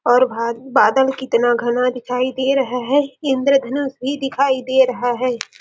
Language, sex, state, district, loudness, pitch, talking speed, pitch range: Hindi, female, Chhattisgarh, Sarguja, -18 LUFS, 260 Hz, 160 wpm, 245-270 Hz